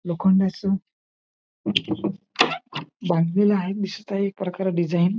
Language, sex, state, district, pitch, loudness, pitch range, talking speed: Marathi, male, Maharashtra, Nagpur, 190 Hz, -23 LUFS, 180-200 Hz, 90 wpm